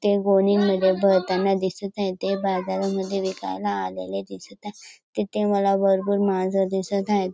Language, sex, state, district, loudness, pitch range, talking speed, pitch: Marathi, female, Maharashtra, Dhule, -23 LUFS, 185-200 Hz, 140 wpm, 195 Hz